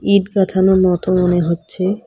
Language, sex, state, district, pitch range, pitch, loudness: Bengali, female, West Bengal, Cooch Behar, 180-195 Hz, 185 Hz, -15 LUFS